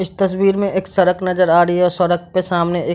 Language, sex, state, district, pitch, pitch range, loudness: Hindi, male, Bihar, Madhepura, 180 Hz, 175-190 Hz, -16 LUFS